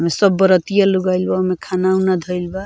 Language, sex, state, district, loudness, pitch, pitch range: Bhojpuri, female, Bihar, Muzaffarpur, -16 LUFS, 185 Hz, 180-190 Hz